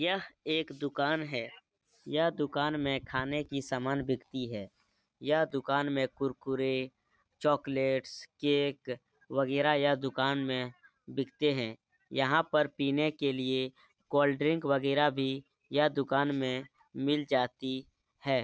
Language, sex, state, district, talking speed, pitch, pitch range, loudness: Hindi, male, Uttar Pradesh, Etah, 125 wpm, 140 Hz, 130-145 Hz, -32 LUFS